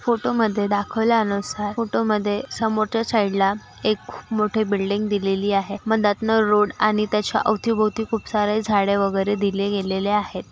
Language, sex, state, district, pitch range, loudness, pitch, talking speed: Marathi, female, Maharashtra, Aurangabad, 200-220 Hz, -21 LUFS, 210 Hz, 150 wpm